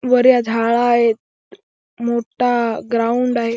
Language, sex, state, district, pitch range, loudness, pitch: Marathi, male, Maharashtra, Chandrapur, 230-250 Hz, -17 LUFS, 235 Hz